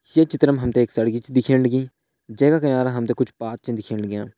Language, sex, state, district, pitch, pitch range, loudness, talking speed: Hindi, male, Uttarakhand, Uttarkashi, 125 Hz, 115-130 Hz, -20 LUFS, 275 wpm